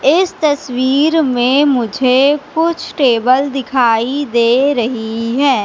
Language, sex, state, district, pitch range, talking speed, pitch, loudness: Hindi, female, Madhya Pradesh, Katni, 245-290 Hz, 105 wpm, 265 Hz, -13 LUFS